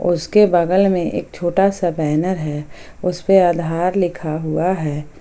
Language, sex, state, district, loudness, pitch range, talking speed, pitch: Hindi, female, Jharkhand, Ranchi, -18 LUFS, 160-185 Hz, 150 wpm, 175 Hz